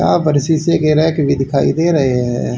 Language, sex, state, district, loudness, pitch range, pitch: Hindi, male, Haryana, Charkhi Dadri, -14 LUFS, 135-160 Hz, 155 Hz